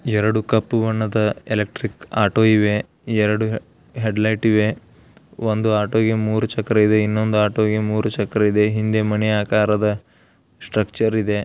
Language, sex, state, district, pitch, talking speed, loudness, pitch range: Kannada, male, Karnataka, Belgaum, 110 Hz, 135 wpm, -19 LUFS, 105-110 Hz